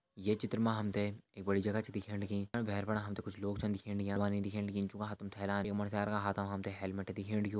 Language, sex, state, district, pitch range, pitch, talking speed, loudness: Hindi, male, Uttarakhand, Tehri Garhwal, 100-105 Hz, 100 Hz, 275 wpm, -38 LUFS